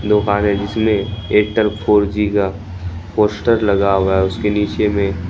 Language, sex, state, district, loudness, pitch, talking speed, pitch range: Hindi, male, Bihar, Katihar, -16 LUFS, 105 Hz, 160 wpm, 95-105 Hz